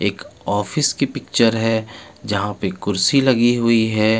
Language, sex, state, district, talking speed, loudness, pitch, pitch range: Hindi, male, Bihar, Patna, 155 wpm, -18 LUFS, 115 Hz, 105-125 Hz